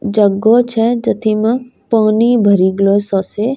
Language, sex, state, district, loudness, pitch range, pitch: Angika, female, Bihar, Bhagalpur, -13 LUFS, 200-235 Hz, 215 Hz